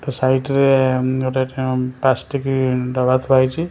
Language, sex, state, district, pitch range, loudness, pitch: Odia, male, Odisha, Khordha, 130-135 Hz, -18 LUFS, 130 Hz